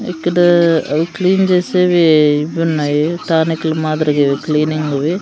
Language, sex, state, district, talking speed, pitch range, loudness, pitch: Telugu, female, Andhra Pradesh, Sri Satya Sai, 125 wpm, 150-175 Hz, -14 LUFS, 160 Hz